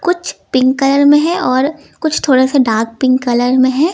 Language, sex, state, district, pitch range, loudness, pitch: Hindi, female, Uttar Pradesh, Lucknow, 255-295 Hz, -13 LUFS, 265 Hz